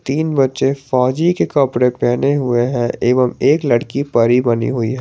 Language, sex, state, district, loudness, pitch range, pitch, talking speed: Hindi, male, Jharkhand, Garhwa, -16 LUFS, 120-140 Hz, 125 Hz, 180 wpm